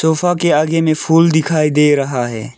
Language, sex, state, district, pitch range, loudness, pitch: Hindi, male, Arunachal Pradesh, Lower Dibang Valley, 150-165 Hz, -14 LUFS, 155 Hz